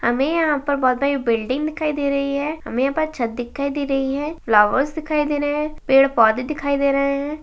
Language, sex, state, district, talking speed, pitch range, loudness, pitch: Hindi, female, Uttar Pradesh, Hamirpur, 245 wpm, 265-295 Hz, -20 LUFS, 280 Hz